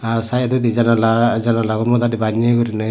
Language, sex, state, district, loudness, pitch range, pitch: Chakma, male, Tripura, Dhalai, -16 LUFS, 115-120 Hz, 115 Hz